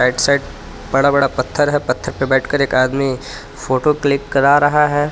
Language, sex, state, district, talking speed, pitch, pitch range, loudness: Hindi, male, Jharkhand, Palamu, 185 wpm, 135 Hz, 130-145 Hz, -16 LUFS